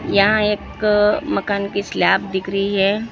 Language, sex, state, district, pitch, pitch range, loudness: Hindi, female, Maharashtra, Gondia, 200 Hz, 195-210 Hz, -18 LUFS